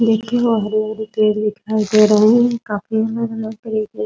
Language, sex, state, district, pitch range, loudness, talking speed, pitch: Hindi, female, Bihar, Muzaffarpur, 215-225 Hz, -17 LUFS, 220 wpm, 220 Hz